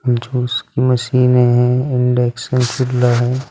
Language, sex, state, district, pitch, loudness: Hindi, male, Uttar Pradesh, Saharanpur, 125 Hz, -15 LUFS